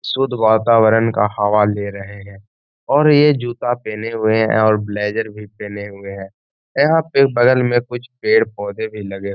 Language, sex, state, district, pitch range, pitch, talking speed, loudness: Hindi, male, Bihar, Gaya, 105-120 Hz, 110 Hz, 180 wpm, -16 LUFS